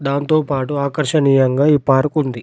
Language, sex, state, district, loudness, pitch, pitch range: Telugu, male, Telangana, Adilabad, -16 LUFS, 140 Hz, 135-150 Hz